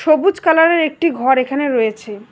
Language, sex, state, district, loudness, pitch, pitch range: Bengali, female, West Bengal, Alipurduar, -15 LUFS, 285 Hz, 245-330 Hz